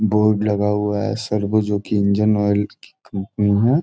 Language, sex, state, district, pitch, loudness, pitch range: Hindi, male, Bihar, Gopalganj, 105 Hz, -19 LUFS, 100-105 Hz